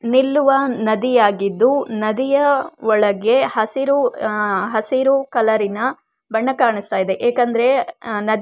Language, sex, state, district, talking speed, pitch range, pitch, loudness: Kannada, female, Karnataka, Shimoga, 85 wpm, 215-265 Hz, 235 Hz, -17 LUFS